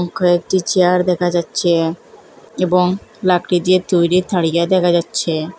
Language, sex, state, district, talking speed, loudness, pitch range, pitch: Bengali, female, Assam, Hailakandi, 120 wpm, -16 LUFS, 170-185 Hz, 180 Hz